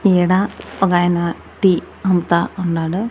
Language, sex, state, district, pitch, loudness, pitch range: Telugu, female, Andhra Pradesh, Annamaya, 180 Hz, -17 LUFS, 170-190 Hz